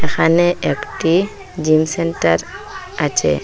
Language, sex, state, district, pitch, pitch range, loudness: Bengali, female, Assam, Hailakandi, 160 Hz, 155-170 Hz, -17 LUFS